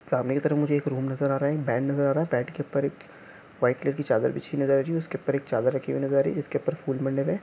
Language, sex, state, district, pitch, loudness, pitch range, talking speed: Hindi, male, Chhattisgarh, Bilaspur, 140 Hz, -26 LUFS, 135-145 Hz, 325 wpm